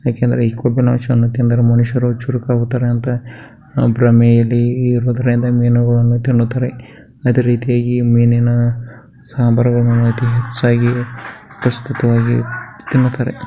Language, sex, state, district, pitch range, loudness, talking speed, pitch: Kannada, male, Karnataka, Bellary, 120-125 Hz, -15 LUFS, 85 wpm, 120 Hz